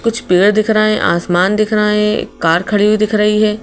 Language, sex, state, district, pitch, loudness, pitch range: Hindi, female, Madhya Pradesh, Bhopal, 210 Hz, -13 LUFS, 195-215 Hz